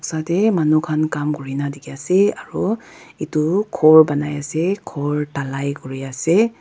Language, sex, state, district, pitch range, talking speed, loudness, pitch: Nagamese, female, Nagaland, Dimapur, 140-175 Hz, 155 wpm, -19 LUFS, 155 Hz